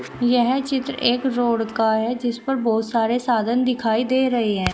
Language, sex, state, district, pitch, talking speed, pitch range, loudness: Hindi, female, Uttar Pradesh, Shamli, 240 Hz, 190 wpm, 225-255 Hz, -21 LUFS